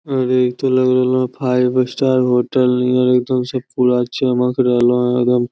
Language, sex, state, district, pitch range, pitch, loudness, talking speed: Magahi, male, Bihar, Lakhisarai, 125-130 Hz, 125 Hz, -16 LUFS, 185 wpm